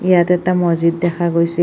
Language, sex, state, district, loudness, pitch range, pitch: Assamese, female, Assam, Kamrup Metropolitan, -16 LUFS, 170-180 Hz, 175 Hz